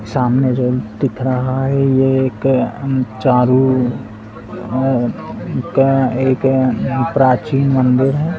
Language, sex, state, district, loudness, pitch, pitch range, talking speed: Hindi, male, Rajasthan, Churu, -15 LUFS, 130 Hz, 125-135 Hz, 120 wpm